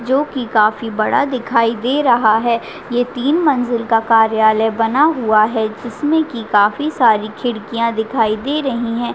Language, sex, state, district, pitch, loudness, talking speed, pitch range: Hindi, female, Chhattisgarh, Raigarh, 235 Hz, -16 LUFS, 165 wpm, 220-265 Hz